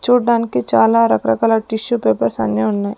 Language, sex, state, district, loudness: Telugu, female, Andhra Pradesh, Sri Satya Sai, -16 LUFS